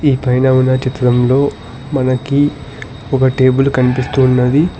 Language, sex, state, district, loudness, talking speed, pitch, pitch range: Telugu, male, Telangana, Hyderabad, -13 LUFS, 100 wpm, 130 Hz, 125-135 Hz